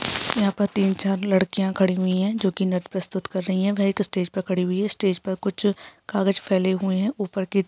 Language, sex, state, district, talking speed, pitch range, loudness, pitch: Hindi, female, Bihar, Jahanabad, 235 wpm, 190-200 Hz, -23 LUFS, 195 Hz